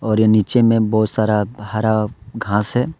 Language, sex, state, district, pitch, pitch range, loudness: Hindi, male, Jharkhand, Deoghar, 110 Hz, 105-115 Hz, -17 LUFS